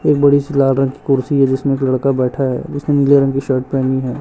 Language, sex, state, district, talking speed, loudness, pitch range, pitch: Hindi, male, Chhattisgarh, Raipur, 285 wpm, -15 LUFS, 130-140 Hz, 135 Hz